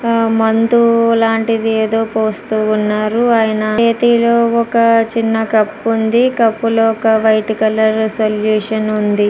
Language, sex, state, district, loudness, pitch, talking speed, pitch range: Telugu, female, Andhra Pradesh, Guntur, -13 LUFS, 225 Hz, 110 wpm, 220-230 Hz